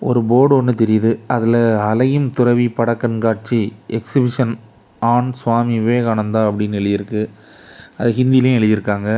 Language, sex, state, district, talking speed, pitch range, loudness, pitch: Tamil, male, Tamil Nadu, Kanyakumari, 110 wpm, 110-120 Hz, -16 LUFS, 115 Hz